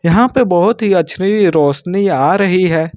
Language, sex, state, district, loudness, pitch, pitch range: Hindi, male, Jharkhand, Ranchi, -13 LUFS, 185 Hz, 170-200 Hz